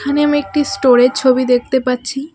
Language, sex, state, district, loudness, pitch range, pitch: Bengali, female, West Bengal, Alipurduar, -14 LUFS, 250-285 Hz, 260 Hz